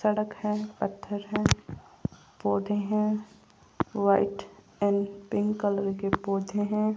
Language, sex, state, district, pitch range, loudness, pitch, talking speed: Hindi, female, Rajasthan, Jaipur, 200-210 Hz, -29 LUFS, 205 Hz, 110 wpm